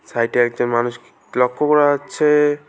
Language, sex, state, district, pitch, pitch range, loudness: Bengali, male, West Bengal, Alipurduar, 145 Hz, 120-150 Hz, -18 LUFS